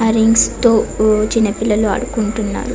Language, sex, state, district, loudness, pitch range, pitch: Telugu, female, Telangana, Karimnagar, -15 LUFS, 215-230 Hz, 220 Hz